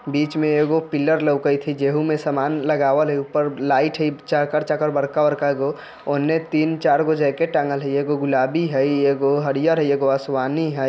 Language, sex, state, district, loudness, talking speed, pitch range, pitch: Bajjika, male, Bihar, Vaishali, -20 LUFS, 175 wpm, 140-155 Hz, 145 Hz